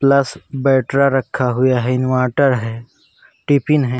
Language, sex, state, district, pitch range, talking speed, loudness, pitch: Hindi, male, Uttar Pradesh, Varanasi, 125-140 Hz, 135 wpm, -16 LUFS, 130 Hz